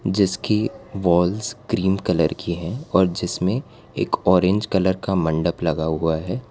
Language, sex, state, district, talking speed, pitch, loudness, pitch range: Hindi, female, Gujarat, Valsad, 145 wpm, 95 Hz, -21 LUFS, 85-100 Hz